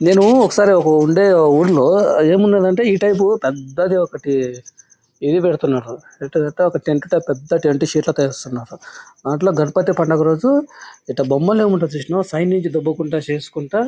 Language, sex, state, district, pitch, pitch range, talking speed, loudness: Telugu, male, Andhra Pradesh, Anantapur, 160 Hz, 150-190 Hz, 145 wpm, -16 LUFS